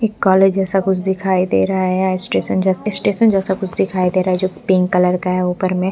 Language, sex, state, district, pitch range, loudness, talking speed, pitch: Hindi, female, Bihar, Katihar, 185-190 Hz, -16 LUFS, 255 wpm, 185 Hz